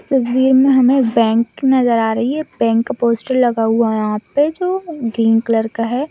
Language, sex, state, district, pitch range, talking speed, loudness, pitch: Hindi, female, West Bengal, Dakshin Dinajpur, 230-270 Hz, 195 wpm, -15 LUFS, 240 Hz